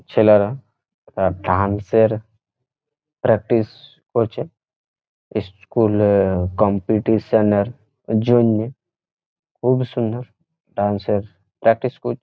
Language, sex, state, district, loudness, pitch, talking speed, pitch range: Bengali, male, West Bengal, Jhargram, -19 LUFS, 110 Hz, 85 wpm, 100-125 Hz